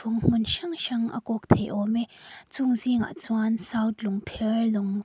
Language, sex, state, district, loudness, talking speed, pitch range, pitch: Mizo, female, Mizoram, Aizawl, -26 LUFS, 155 wpm, 220-235 Hz, 225 Hz